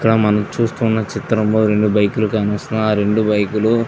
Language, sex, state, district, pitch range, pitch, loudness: Telugu, male, Andhra Pradesh, Visakhapatnam, 105-110 Hz, 110 Hz, -17 LUFS